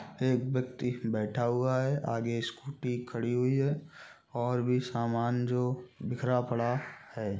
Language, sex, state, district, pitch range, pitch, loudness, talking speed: Hindi, male, Chhattisgarh, Balrampur, 120-130 Hz, 125 Hz, -32 LUFS, 140 wpm